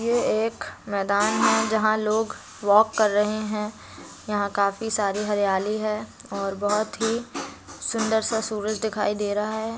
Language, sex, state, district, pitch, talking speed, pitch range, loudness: Hindi, male, Uttar Pradesh, Budaun, 215 Hz, 155 wpm, 205-220 Hz, -24 LUFS